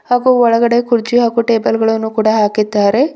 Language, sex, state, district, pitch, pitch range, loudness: Kannada, female, Karnataka, Bidar, 230 Hz, 220-240 Hz, -13 LUFS